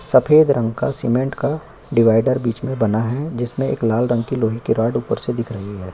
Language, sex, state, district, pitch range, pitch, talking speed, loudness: Hindi, male, Chhattisgarh, Kabirdham, 115-130 Hz, 120 Hz, 210 wpm, -19 LUFS